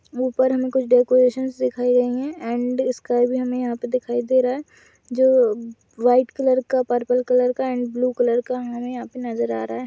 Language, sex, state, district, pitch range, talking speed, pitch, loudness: Hindi, female, Chhattisgarh, Sarguja, 245-255 Hz, 215 wpm, 250 Hz, -21 LUFS